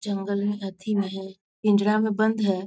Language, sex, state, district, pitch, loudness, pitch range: Hindi, female, Bihar, Muzaffarpur, 200 Hz, -25 LUFS, 195-210 Hz